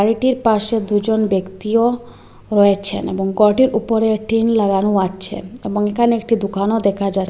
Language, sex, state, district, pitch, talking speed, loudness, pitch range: Bengali, female, Assam, Hailakandi, 210 Hz, 140 wpm, -17 LUFS, 200-225 Hz